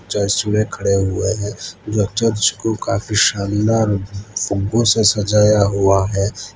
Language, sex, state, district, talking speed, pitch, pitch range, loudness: Hindi, male, Gujarat, Valsad, 130 wpm, 105 Hz, 100-110 Hz, -17 LUFS